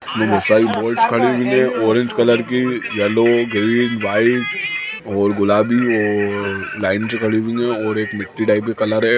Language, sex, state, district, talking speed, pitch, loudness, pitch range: Hindi, male, Chhattisgarh, Sukma, 175 wpm, 110 Hz, -17 LUFS, 105-120 Hz